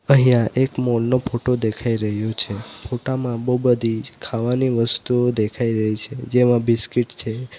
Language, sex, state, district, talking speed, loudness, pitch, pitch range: Gujarati, male, Gujarat, Valsad, 160 wpm, -20 LUFS, 120 Hz, 115-125 Hz